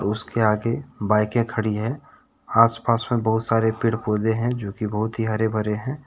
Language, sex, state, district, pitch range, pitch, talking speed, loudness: Hindi, male, Jharkhand, Deoghar, 110-115 Hz, 110 Hz, 180 wpm, -22 LUFS